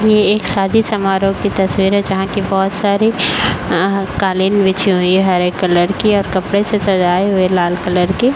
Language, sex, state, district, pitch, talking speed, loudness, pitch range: Hindi, female, Uttar Pradesh, Varanasi, 195 Hz, 200 wpm, -14 LUFS, 185-200 Hz